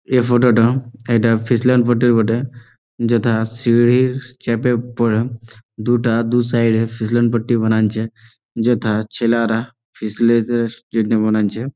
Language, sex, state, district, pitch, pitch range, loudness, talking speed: Bengali, male, West Bengal, Malda, 115 Hz, 115-120 Hz, -17 LUFS, 100 wpm